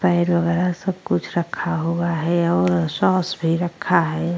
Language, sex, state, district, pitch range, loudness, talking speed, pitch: Hindi, female, Uttar Pradesh, Jyotiba Phule Nagar, 165-175 Hz, -20 LUFS, 165 wpm, 170 Hz